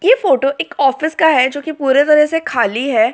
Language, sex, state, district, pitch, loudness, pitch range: Hindi, female, Delhi, New Delhi, 285 Hz, -14 LUFS, 265-320 Hz